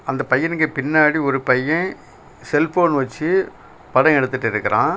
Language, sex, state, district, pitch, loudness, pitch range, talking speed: Tamil, male, Tamil Nadu, Kanyakumari, 150 Hz, -18 LUFS, 130-165 Hz, 120 wpm